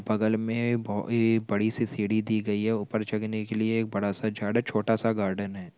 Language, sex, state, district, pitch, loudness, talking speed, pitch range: Hindi, male, Bihar, Supaul, 110 Hz, -28 LUFS, 195 wpm, 105-115 Hz